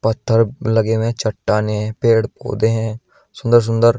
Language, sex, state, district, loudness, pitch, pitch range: Hindi, male, Uttar Pradesh, Shamli, -17 LUFS, 110 Hz, 110-115 Hz